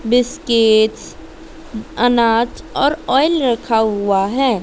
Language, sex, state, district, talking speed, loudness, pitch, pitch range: Hindi, female, Madhya Pradesh, Dhar, 90 wpm, -15 LUFS, 240 Hz, 220-265 Hz